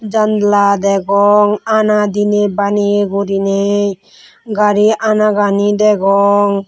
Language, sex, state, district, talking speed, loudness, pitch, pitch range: Chakma, female, Tripura, West Tripura, 80 wpm, -12 LUFS, 205 Hz, 200-210 Hz